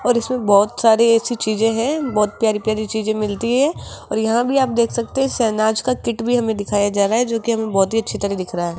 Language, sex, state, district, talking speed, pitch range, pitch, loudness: Hindi, female, Rajasthan, Jaipur, 265 wpm, 210-240 Hz, 225 Hz, -18 LUFS